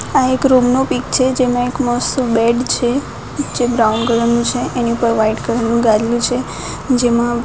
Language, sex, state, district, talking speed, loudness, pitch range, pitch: Gujarati, female, Gujarat, Gandhinagar, 200 wpm, -15 LUFS, 235-255 Hz, 240 Hz